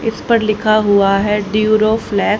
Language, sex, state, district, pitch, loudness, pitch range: Hindi, female, Haryana, Jhajjar, 215 Hz, -14 LUFS, 205-215 Hz